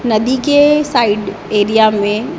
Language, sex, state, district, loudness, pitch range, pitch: Hindi, female, Maharashtra, Gondia, -13 LUFS, 210-280 Hz, 220 Hz